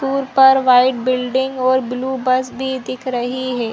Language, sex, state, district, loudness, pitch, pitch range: Hindi, female, Chhattisgarh, Korba, -16 LUFS, 255 Hz, 250-265 Hz